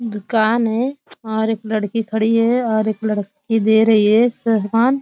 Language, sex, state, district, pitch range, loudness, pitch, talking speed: Hindi, female, Uttar Pradesh, Ghazipur, 215-230 Hz, -17 LUFS, 220 Hz, 165 wpm